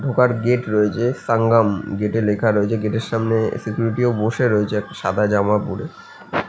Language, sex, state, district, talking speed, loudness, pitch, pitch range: Bengali, male, West Bengal, Kolkata, 175 wpm, -19 LUFS, 110 Hz, 105-115 Hz